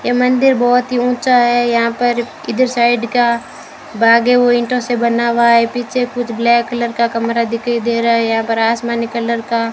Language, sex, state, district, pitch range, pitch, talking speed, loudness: Hindi, female, Rajasthan, Bikaner, 235-245 Hz, 235 Hz, 215 wpm, -14 LUFS